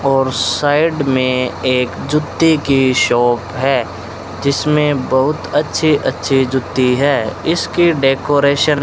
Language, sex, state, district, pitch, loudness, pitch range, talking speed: Hindi, male, Rajasthan, Bikaner, 135 Hz, -15 LUFS, 125-145 Hz, 115 wpm